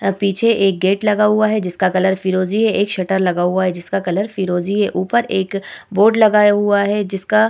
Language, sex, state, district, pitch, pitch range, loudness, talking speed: Hindi, female, Uttar Pradesh, Muzaffarnagar, 195 Hz, 190-210 Hz, -16 LUFS, 225 wpm